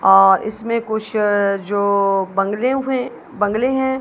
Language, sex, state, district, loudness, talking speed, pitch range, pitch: Hindi, female, Punjab, Kapurthala, -18 LUFS, 120 wpm, 200-250 Hz, 210 Hz